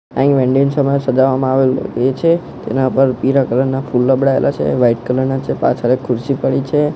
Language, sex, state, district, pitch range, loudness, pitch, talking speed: Gujarati, male, Gujarat, Gandhinagar, 130-135 Hz, -15 LUFS, 130 Hz, 180 wpm